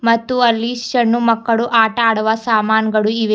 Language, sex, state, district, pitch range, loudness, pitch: Kannada, female, Karnataka, Bidar, 220-235 Hz, -15 LUFS, 230 Hz